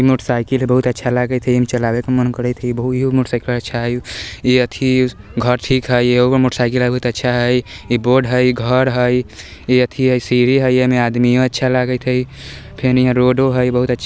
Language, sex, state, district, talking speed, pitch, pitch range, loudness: Bajjika, male, Bihar, Vaishali, 225 wpm, 125 Hz, 120-125 Hz, -15 LUFS